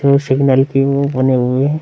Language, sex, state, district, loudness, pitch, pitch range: Hindi, male, Bihar, Vaishali, -14 LUFS, 135 Hz, 130-140 Hz